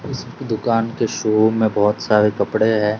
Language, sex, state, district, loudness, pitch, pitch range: Hindi, male, Gujarat, Gandhinagar, -18 LUFS, 110 Hz, 105-115 Hz